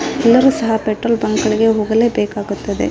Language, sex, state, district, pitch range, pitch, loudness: Kannada, female, Karnataka, Raichur, 210-235 Hz, 225 Hz, -15 LUFS